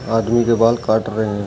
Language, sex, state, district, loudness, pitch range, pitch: Hindi, male, Chhattisgarh, Raigarh, -17 LUFS, 110-115 Hz, 115 Hz